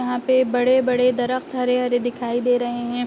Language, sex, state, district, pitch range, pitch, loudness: Hindi, female, Uttar Pradesh, Ghazipur, 245-250 Hz, 250 Hz, -20 LUFS